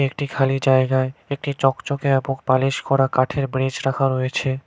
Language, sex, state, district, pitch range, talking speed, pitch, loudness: Bengali, male, West Bengal, Cooch Behar, 130-140 Hz, 155 wpm, 135 Hz, -20 LUFS